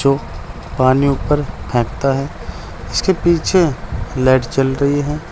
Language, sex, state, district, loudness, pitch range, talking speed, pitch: Hindi, male, Uttar Pradesh, Saharanpur, -17 LUFS, 130-145 Hz, 125 wpm, 135 Hz